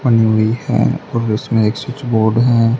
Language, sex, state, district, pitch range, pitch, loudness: Hindi, male, Haryana, Charkhi Dadri, 110-120 Hz, 115 Hz, -15 LUFS